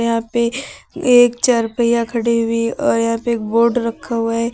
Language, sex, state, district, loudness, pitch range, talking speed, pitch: Hindi, female, Uttar Pradesh, Lucknow, -16 LUFS, 230-240 Hz, 200 wpm, 235 Hz